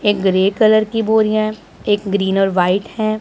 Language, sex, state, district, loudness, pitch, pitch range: Hindi, female, Punjab, Pathankot, -16 LUFS, 205 Hz, 195-215 Hz